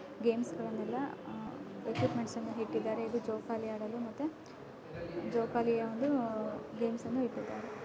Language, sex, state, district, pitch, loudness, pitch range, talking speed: Kannada, female, Karnataka, Bijapur, 235 Hz, -37 LUFS, 225-245 Hz, 105 wpm